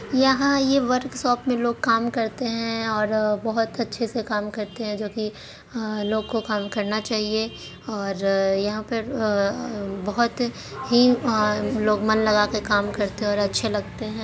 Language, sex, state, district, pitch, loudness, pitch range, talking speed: Hindi, female, Bihar, Jahanabad, 220 Hz, -23 LUFS, 210-235 Hz, 170 wpm